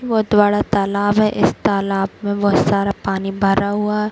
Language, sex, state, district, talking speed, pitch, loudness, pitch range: Hindi, female, Bihar, Kishanganj, 190 wpm, 200 Hz, -17 LUFS, 195-210 Hz